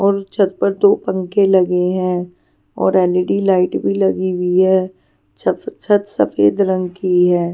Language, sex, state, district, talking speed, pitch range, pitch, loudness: Hindi, female, Punjab, Pathankot, 150 wpm, 180-195 Hz, 185 Hz, -16 LUFS